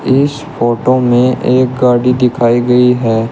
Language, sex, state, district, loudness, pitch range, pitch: Hindi, male, Uttar Pradesh, Shamli, -11 LUFS, 120-130 Hz, 125 Hz